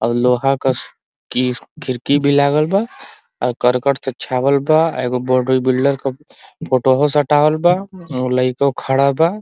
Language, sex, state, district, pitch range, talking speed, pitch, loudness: Bhojpuri, male, Uttar Pradesh, Ghazipur, 125-150 Hz, 165 wpm, 135 Hz, -17 LUFS